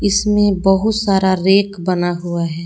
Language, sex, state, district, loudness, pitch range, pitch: Hindi, female, Jharkhand, Palamu, -15 LUFS, 175-200 Hz, 195 Hz